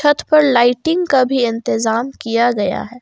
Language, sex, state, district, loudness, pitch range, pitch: Hindi, female, Jharkhand, Garhwa, -15 LUFS, 230-290 Hz, 245 Hz